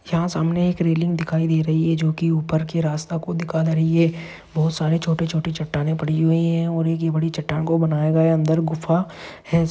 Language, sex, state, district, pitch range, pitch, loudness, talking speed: Hindi, male, Maharashtra, Dhule, 160-165 Hz, 165 Hz, -21 LUFS, 215 wpm